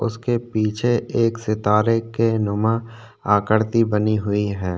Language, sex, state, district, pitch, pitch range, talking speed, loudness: Hindi, male, Chhattisgarh, Korba, 110 Hz, 105-115 Hz, 140 wpm, -20 LUFS